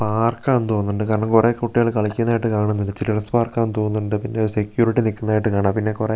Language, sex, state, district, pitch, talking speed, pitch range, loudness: Malayalam, male, Kerala, Wayanad, 110 Hz, 165 wpm, 105-115 Hz, -20 LUFS